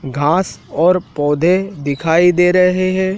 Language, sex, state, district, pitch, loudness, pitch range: Hindi, male, Madhya Pradesh, Dhar, 180 Hz, -15 LUFS, 150-185 Hz